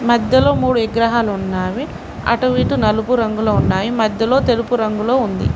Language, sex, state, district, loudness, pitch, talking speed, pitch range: Telugu, female, Telangana, Mahabubabad, -16 LUFS, 230 Hz, 140 wpm, 215-250 Hz